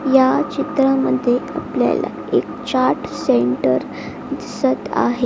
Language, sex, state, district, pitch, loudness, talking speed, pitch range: Marathi, female, Maharashtra, Chandrapur, 260 Hz, -18 LUFS, 90 wpm, 245-280 Hz